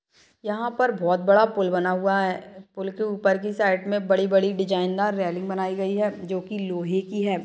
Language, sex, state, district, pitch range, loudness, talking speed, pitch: Hindi, female, Uttarakhand, Tehri Garhwal, 190-205 Hz, -24 LUFS, 210 wpm, 195 Hz